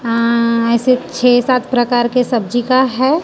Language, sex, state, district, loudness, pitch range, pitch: Hindi, female, Chhattisgarh, Raipur, -14 LUFS, 235-255 Hz, 245 Hz